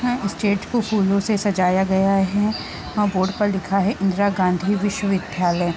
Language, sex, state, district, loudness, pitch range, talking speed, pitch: Hindi, female, Chhattisgarh, Bilaspur, -20 LUFS, 190-205 Hz, 165 wpm, 195 Hz